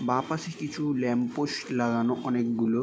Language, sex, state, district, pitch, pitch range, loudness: Bengali, male, West Bengal, Jalpaiguri, 125 Hz, 120-145 Hz, -28 LUFS